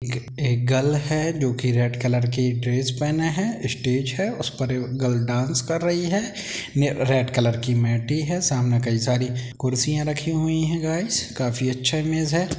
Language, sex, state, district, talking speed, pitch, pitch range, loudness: Hindi, male, Bihar, Darbhanga, 180 wpm, 130 Hz, 125-155 Hz, -23 LUFS